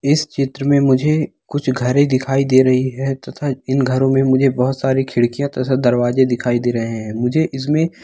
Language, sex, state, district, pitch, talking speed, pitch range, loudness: Hindi, male, Bihar, East Champaran, 135 Hz, 195 wpm, 125-140 Hz, -17 LUFS